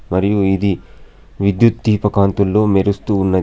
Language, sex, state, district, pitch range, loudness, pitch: Telugu, male, Telangana, Adilabad, 95-105 Hz, -16 LUFS, 100 Hz